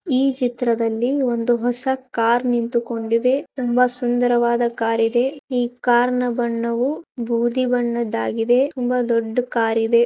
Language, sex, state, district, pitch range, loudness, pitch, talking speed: Kannada, female, Karnataka, Shimoga, 235-250 Hz, -20 LUFS, 240 Hz, 105 wpm